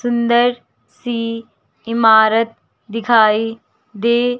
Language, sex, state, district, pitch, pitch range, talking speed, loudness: Hindi, female, Himachal Pradesh, Shimla, 230 Hz, 225-240 Hz, 70 wpm, -16 LUFS